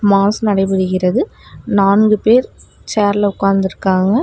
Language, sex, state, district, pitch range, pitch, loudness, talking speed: Tamil, female, Tamil Nadu, Namakkal, 195-215 Hz, 200 Hz, -14 LUFS, 85 wpm